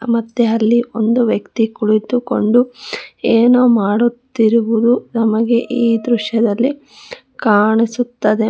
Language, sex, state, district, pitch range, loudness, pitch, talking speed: Kannada, female, Karnataka, Bangalore, 225-245 Hz, -15 LUFS, 230 Hz, 80 wpm